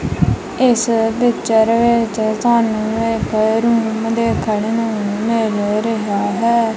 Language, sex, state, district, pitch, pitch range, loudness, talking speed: Punjabi, female, Punjab, Kapurthala, 225 Hz, 215-230 Hz, -16 LUFS, 95 wpm